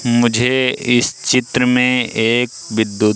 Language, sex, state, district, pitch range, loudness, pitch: Hindi, male, Madhya Pradesh, Katni, 115-125 Hz, -15 LUFS, 120 Hz